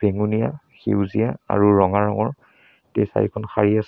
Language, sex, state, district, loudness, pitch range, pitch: Assamese, male, Assam, Sonitpur, -21 LUFS, 105-110 Hz, 105 Hz